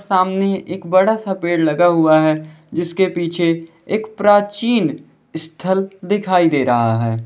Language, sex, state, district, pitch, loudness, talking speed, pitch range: Hindi, male, Uttar Pradesh, Lalitpur, 175 Hz, -17 LUFS, 140 wpm, 160-195 Hz